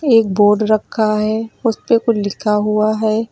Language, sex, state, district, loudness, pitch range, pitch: Hindi, female, Uttar Pradesh, Lucknow, -16 LUFS, 210-225 Hz, 215 Hz